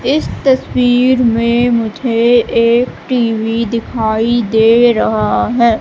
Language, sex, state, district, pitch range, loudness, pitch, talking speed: Hindi, female, Madhya Pradesh, Katni, 225-240 Hz, -12 LUFS, 235 Hz, 105 wpm